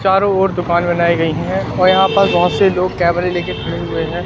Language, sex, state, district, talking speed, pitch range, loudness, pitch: Hindi, male, Madhya Pradesh, Katni, 240 wpm, 170-190 Hz, -15 LUFS, 175 Hz